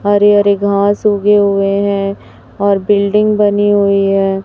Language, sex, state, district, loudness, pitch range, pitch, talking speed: Hindi, male, Chhattisgarh, Raipur, -12 LUFS, 200-205 Hz, 200 Hz, 150 wpm